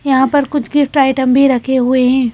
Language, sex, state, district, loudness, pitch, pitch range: Hindi, female, Madhya Pradesh, Bhopal, -13 LUFS, 265 Hz, 255-280 Hz